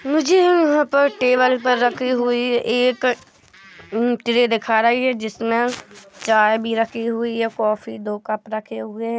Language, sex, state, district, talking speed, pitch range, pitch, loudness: Hindi, female, Chhattisgarh, Bilaspur, 145 wpm, 220-250 Hz, 235 Hz, -19 LUFS